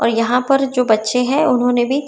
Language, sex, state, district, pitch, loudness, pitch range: Hindi, female, Maharashtra, Chandrapur, 250 Hz, -15 LUFS, 240-270 Hz